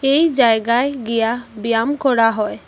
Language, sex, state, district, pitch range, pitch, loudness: Bengali, female, Assam, Hailakandi, 225-270 Hz, 235 Hz, -17 LUFS